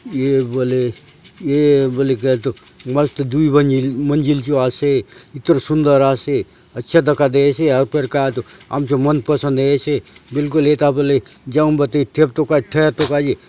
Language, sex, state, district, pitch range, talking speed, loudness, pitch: Halbi, male, Chhattisgarh, Bastar, 135-150 Hz, 155 wpm, -16 LUFS, 145 Hz